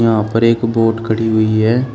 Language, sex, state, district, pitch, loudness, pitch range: Hindi, male, Uttar Pradesh, Shamli, 115 Hz, -14 LUFS, 110-115 Hz